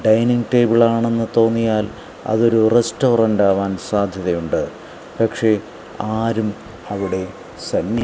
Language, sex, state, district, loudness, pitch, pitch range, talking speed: Malayalam, male, Kerala, Kasaragod, -18 LUFS, 110 Hz, 100-115 Hz, 90 wpm